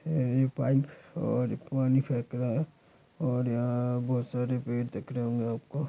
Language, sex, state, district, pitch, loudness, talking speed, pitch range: Hindi, male, Chhattisgarh, Bastar, 125 Hz, -30 LUFS, 165 wpm, 120-135 Hz